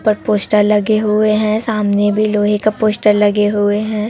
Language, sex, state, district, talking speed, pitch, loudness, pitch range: Hindi, female, Chhattisgarh, Raipur, 190 wpm, 210 Hz, -14 LUFS, 210-215 Hz